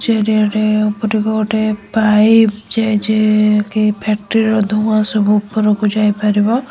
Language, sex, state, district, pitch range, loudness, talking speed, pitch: Odia, male, Odisha, Nuapada, 210-220 Hz, -14 LUFS, 105 wpm, 215 Hz